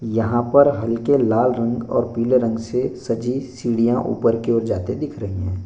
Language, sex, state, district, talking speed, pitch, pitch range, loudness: Hindi, male, Bihar, Bhagalpur, 190 wpm, 115 Hz, 115-125 Hz, -20 LUFS